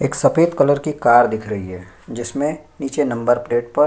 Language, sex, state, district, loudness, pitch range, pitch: Hindi, male, Chhattisgarh, Sukma, -18 LUFS, 120-145 Hz, 120 Hz